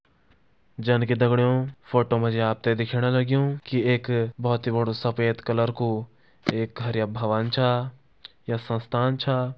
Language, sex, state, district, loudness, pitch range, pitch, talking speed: Hindi, male, Uttarakhand, Tehri Garhwal, -25 LUFS, 115-125 Hz, 120 Hz, 150 wpm